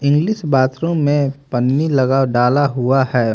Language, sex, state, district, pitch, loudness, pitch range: Hindi, male, Haryana, Jhajjar, 135 Hz, -16 LUFS, 130-145 Hz